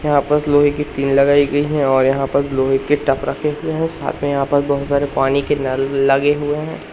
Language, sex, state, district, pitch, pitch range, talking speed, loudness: Hindi, male, Madhya Pradesh, Katni, 140 Hz, 135-145 Hz, 250 wpm, -17 LUFS